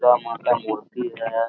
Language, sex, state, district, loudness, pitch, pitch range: Hindi, male, Jharkhand, Sahebganj, -24 LUFS, 115 Hz, 115-120 Hz